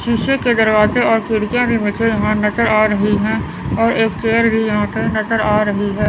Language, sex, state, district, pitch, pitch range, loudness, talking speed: Hindi, male, Chandigarh, Chandigarh, 220 Hz, 210-230 Hz, -15 LUFS, 215 wpm